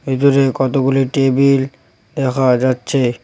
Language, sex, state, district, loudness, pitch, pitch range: Bengali, male, West Bengal, Cooch Behar, -15 LUFS, 135 Hz, 130-135 Hz